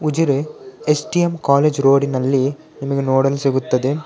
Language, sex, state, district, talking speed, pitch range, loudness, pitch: Kannada, male, Karnataka, Dakshina Kannada, 105 wpm, 135-155 Hz, -17 LUFS, 140 Hz